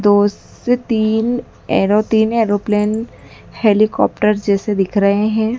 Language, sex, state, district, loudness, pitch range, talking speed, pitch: Hindi, female, Madhya Pradesh, Dhar, -16 LUFS, 205-220 Hz, 105 wpm, 215 Hz